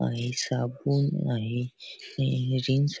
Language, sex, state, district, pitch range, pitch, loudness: Marathi, male, Maharashtra, Chandrapur, 120-140 Hz, 130 Hz, -28 LUFS